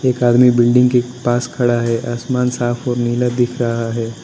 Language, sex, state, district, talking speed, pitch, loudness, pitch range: Hindi, male, Arunachal Pradesh, Lower Dibang Valley, 200 wpm, 120 Hz, -16 LUFS, 120-125 Hz